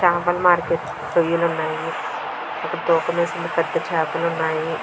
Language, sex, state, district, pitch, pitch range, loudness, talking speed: Telugu, female, Andhra Pradesh, Visakhapatnam, 170 Hz, 160-175 Hz, -21 LUFS, 110 wpm